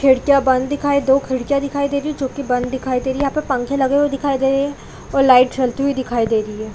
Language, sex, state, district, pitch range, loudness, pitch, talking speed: Hindi, female, Chhattisgarh, Bilaspur, 255-280 Hz, -17 LUFS, 270 Hz, 295 wpm